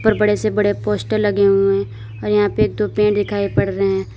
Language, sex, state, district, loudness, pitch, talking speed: Hindi, female, Uttar Pradesh, Lalitpur, -17 LUFS, 195 Hz, 245 wpm